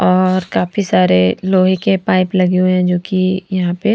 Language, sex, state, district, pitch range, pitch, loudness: Hindi, female, Punjab, Fazilka, 180-190 Hz, 185 Hz, -14 LUFS